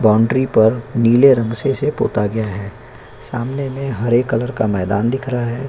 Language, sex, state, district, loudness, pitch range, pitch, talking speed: Hindi, male, Chhattisgarh, Korba, -17 LUFS, 110-130 Hz, 120 Hz, 180 wpm